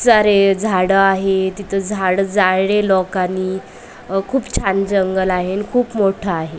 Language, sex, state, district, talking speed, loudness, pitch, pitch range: Marathi, female, Maharashtra, Aurangabad, 145 wpm, -16 LUFS, 195 Hz, 190-205 Hz